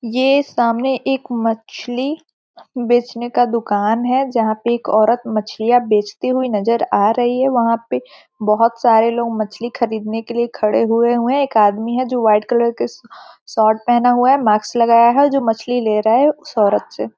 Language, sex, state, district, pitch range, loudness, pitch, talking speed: Hindi, female, Bihar, Gopalganj, 220-245 Hz, -16 LUFS, 235 Hz, 145 wpm